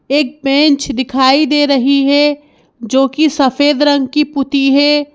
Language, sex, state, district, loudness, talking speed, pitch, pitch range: Hindi, female, Madhya Pradesh, Bhopal, -12 LUFS, 150 wpm, 280 Hz, 270-295 Hz